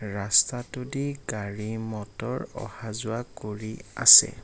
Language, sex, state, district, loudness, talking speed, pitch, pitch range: Assamese, male, Assam, Kamrup Metropolitan, -23 LUFS, 95 wpm, 110 Hz, 105-120 Hz